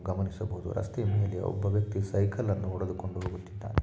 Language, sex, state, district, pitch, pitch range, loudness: Kannada, male, Karnataka, Shimoga, 100 Hz, 95-105 Hz, -32 LUFS